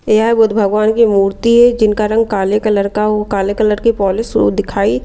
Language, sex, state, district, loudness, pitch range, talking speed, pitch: Hindi, female, Delhi, New Delhi, -13 LUFS, 200-225 Hz, 200 wpm, 210 Hz